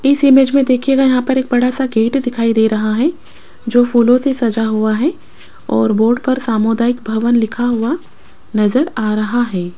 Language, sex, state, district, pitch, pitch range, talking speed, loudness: Hindi, female, Rajasthan, Jaipur, 240 Hz, 220-265 Hz, 190 wpm, -14 LUFS